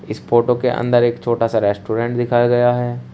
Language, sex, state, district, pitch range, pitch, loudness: Hindi, male, Uttar Pradesh, Shamli, 115-120 Hz, 120 Hz, -17 LUFS